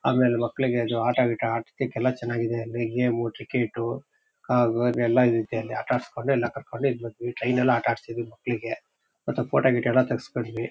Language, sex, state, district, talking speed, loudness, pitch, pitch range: Kannada, male, Karnataka, Shimoga, 170 wpm, -25 LUFS, 120 Hz, 115-125 Hz